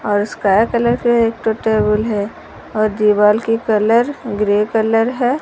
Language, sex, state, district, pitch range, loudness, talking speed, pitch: Hindi, female, Odisha, Sambalpur, 210-235 Hz, -16 LUFS, 155 wpm, 220 Hz